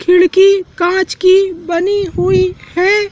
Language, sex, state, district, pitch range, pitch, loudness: Hindi, male, Madhya Pradesh, Dhar, 360-390 Hz, 370 Hz, -12 LUFS